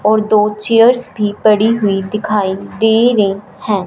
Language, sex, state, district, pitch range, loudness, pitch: Hindi, female, Punjab, Fazilka, 200-220 Hz, -13 LUFS, 210 Hz